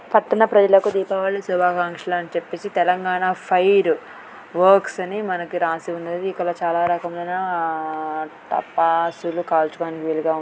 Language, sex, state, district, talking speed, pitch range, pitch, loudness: Telugu, female, Telangana, Karimnagar, 115 wpm, 170-185 Hz, 175 Hz, -21 LUFS